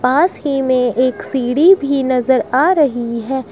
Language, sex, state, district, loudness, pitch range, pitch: Hindi, male, Uttar Pradesh, Shamli, -15 LUFS, 250-280 Hz, 265 Hz